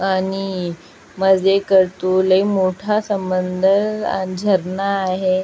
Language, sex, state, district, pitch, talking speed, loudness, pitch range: Marathi, female, Maharashtra, Aurangabad, 190 Hz, 75 wpm, -18 LUFS, 185-195 Hz